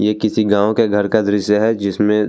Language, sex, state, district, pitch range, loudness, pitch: Hindi, male, Bihar, Vaishali, 105-110 Hz, -16 LUFS, 105 Hz